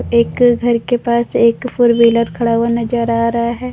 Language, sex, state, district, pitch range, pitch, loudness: Hindi, female, Jharkhand, Deoghar, 230-240 Hz, 235 Hz, -14 LUFS